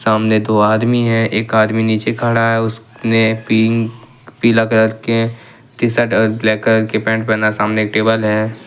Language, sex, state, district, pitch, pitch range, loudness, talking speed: Hindi, male, Jharkhand, Ranchi, 110 Hz, 110-115 Hz, -15 LUFS, 185 wpm